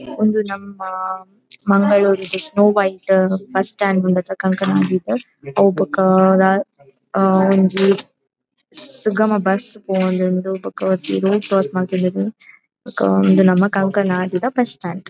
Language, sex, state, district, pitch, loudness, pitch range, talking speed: Tulu, female, Karnataka, Dakshina Kannada, 190 Hz, -16 LUFS, 185-200 Hz, 115 wpm